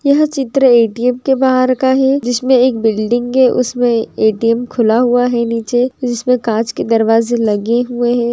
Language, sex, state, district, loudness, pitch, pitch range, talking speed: Hindi, female, Andhra Pradesh, Chittoor, -13 LUFS, 245 Hz, 230-255 Hz, 175 wpm